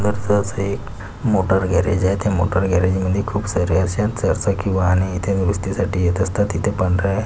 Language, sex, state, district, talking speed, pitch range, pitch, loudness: Marathi, male, Maharashtra, Pune, 180 wpm, 95-100 Hz, 95 Hz, -19 LUFS